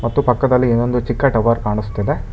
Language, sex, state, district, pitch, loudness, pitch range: Kannada, male, Karnataka, Bangalore, 120 Hz, -17 LUFS, 115-125 Hz